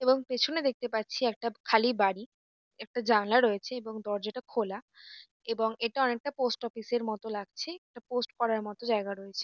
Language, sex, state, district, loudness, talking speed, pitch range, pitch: Bengali, female, West Bengal, North 24 Parganas, -31 LUFS, 180 wpm, 215-250 Hz, 235 Hz